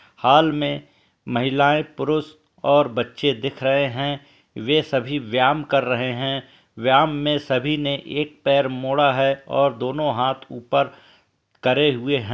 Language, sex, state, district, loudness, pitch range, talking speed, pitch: Hindi, male, Uttar Pradesh, Etah, -21 LUFS, 130-145 Hz, 150 wpm, 140 Hz